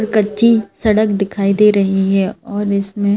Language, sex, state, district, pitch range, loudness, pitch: Hindi, male, Madhya Pradesh, Bhopal, 200-215 Hz, -15 LUFS, 205 Hz